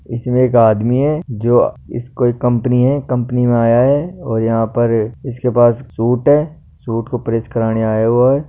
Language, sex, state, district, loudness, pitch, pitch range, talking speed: Hindi, male, Rajasthan, Nagaur, -15 LUFS, 120 Hz, 115-125 Hz, 185 wpm